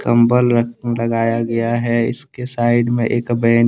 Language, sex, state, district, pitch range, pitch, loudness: Hindi, male, Jharkhand, Deoghar, 115-120 Hz, 120 Hz, -17 LUFS